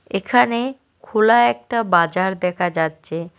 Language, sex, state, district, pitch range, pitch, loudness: Bengali, male, West Bengal, Cooch Behar, 165-225 Hz, 180 Hz, -18 LUFS